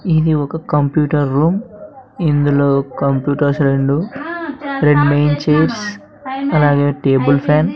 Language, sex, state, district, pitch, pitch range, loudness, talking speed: Telugu, male, Andhra Pradesh, Sri Satya Sai, 150 Hz, 145-195 Hz, -15 LUFS, 100 wpm